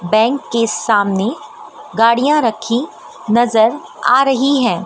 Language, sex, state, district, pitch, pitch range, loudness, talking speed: Hindi, female, Madhya Pradesh, Dhar, 230 Hz, 220-260 Hz, -15 LUFS, 110 wpm